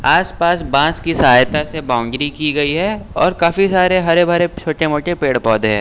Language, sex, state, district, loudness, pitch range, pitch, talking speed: Hindi, male, Uttar Pradesh, Lucknow, -15 LUFS, 145-175 Hz, 155 Hz, 195 wpm